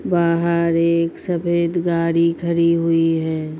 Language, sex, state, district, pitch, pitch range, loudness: Hindi, female, Uttar Pradesh, Gorakhpur, 170 Hz, 165-170 Hz, -18 LUFS